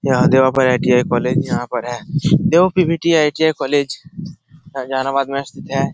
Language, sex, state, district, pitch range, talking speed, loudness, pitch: Hindi, male, Bihar, Jahanabad, 130-160 Hz, 150 wpm, -16 LUFS, 140 Hz